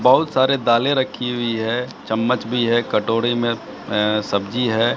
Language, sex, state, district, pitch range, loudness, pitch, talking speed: Hindi, male, Bihar, Katihar, 115-125 Hz, -20 LUFS, 120 Hz, 170 wpm